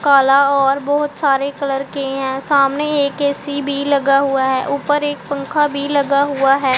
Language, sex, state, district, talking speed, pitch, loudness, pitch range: Hindi, female, Punjab, Pathankot, 185 wpm, 280 Hz, -16 LUFS, 275-285 Hz